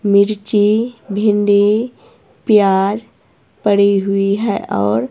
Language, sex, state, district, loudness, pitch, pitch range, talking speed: Hindi, female, Himachal Pradesh, Shimla, -15 LUFS, 205 Hz, 200-215 Hz, 80 wpm